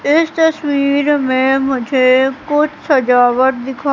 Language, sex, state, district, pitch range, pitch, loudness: Hindi, female, Madhya Pradesh, Katni, 260-295 Hz, 275 Hz, -14 LUFS